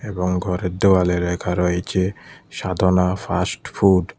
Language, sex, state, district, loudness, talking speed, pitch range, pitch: Bengali, male, Tripura, West Tripura, -20 LUFS, 115 wpm, 90-95 Hz, 90 Hz